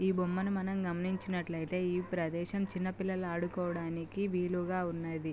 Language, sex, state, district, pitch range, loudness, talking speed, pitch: Telugu, female, Andhra Pradesh, Guntur, 170-185 Hz, -35 LUFS, 135 wpm, 180 Hz